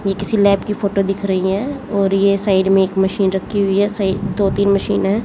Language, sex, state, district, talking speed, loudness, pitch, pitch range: Hindi, female, Haryana, Jhajjar, 250 wpm, -16 LUFS, 195 Hz, 195-200 Hz